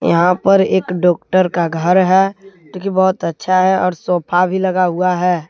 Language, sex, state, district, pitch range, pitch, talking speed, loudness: Hindi, male, Jharkhand, Deoghar, 175-190 Hz, 185 Hz, 195 wpm, -15 LUFS